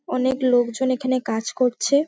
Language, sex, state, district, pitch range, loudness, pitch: Bengali, female, West Bengal, Paschim Medinipur, 245-260 Hz, -21 LUFS, 255 Hz